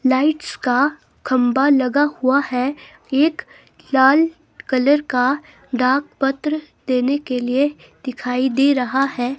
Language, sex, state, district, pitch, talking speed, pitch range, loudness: Hindi, female, Himachal Pradesh, Shimla, 270 Hz, 120 wpm, 255-290 Hz, -18 LUFS